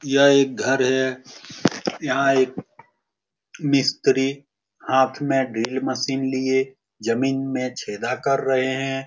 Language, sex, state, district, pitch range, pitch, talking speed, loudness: Hindi, male, Bihar, Lakhisarai, 130-135 Hz, 130 Hz, 125 wpm, -21 LUFS